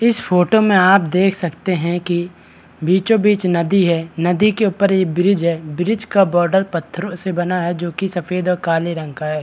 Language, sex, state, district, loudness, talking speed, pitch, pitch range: Hindi, male, Bihar, Madhepura, -17 LUFS, 210 wpm, 180 Hz, 170-195 Hz